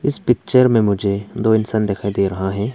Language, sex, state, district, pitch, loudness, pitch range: Hindi, male, Arunachal Pradesh, Papum Pare, 105 Hz, -17 LUFS, 100-120 Hz